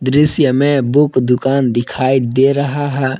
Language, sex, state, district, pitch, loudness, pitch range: Hindi, male, Jharkhand, Palamu, 135 Hz, -14 LUFS, 130-140 Hz